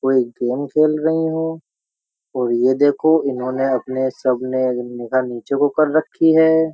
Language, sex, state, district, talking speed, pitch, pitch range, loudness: Hindi, male, Uttar Pradesh, Jyotiba Phule Nagar, 160 wpm, 135 Hz, 130-155 Hz, -18 LUFS